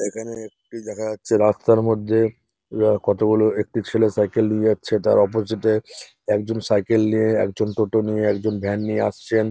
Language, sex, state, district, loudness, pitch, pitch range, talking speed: Bengali, male, West Bengal, North 24 Parganas, -20 LUFS, 110 Hz, 105-110 Hz, 165 wpm